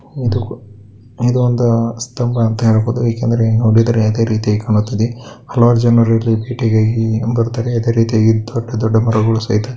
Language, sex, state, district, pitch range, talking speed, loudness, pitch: Kannada, male, Karnataka, Bellary, 110-120 Hz, 125 wpm, -15 LUFS, 115 Hz